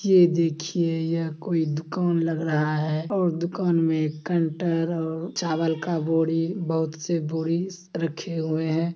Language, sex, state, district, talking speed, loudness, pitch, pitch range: Hindi, male, Bihar, Samastipur, 145 wpm, -25 LUFS, 165 Hz, 160-170 Hz